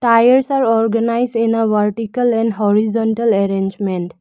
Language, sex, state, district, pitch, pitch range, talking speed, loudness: English, female, Arunachal Pradesh, Lower Dibang Valley, 225 Hz, 210-230 Hz, 130 wpm, -16 LUFS